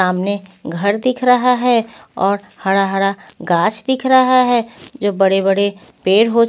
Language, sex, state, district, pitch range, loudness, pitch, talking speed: Hindi, female, Punjab, Pathankot, 195-245 Hz, -16 LUFS, 205 Hz, 150 wpm